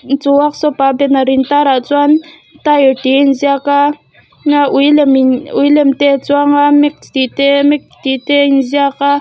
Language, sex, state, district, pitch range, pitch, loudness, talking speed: Mizo, female, Mizoram, Aizawl, 275-290 Hz, 285 Hz, -11 LUFS, 220 wpm